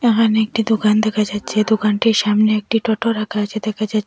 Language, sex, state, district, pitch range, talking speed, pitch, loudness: Bengali, female, Assam, Hailakandi, 215-220 Hz, 190 wpm, 215 Hz, -17 LUFS